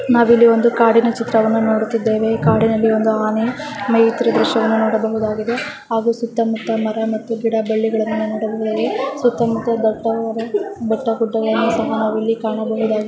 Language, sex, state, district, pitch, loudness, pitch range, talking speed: Kannada, female, Karnataka, Chamarajanagar, 225 Hz, -17 LUFS, 220-230 Hz, 135 wpm